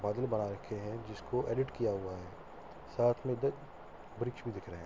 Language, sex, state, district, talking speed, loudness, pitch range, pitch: Hindi, male, Uttar Pradesh, Hamirpur, 210 wpm, -37 LUFS, 90-120 Hz, 105 Hz